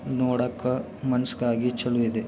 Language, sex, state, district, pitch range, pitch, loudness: Kannada, male, Karnataka, Belgaum, 120-125 Hz, 125 Hz, -26 LUFS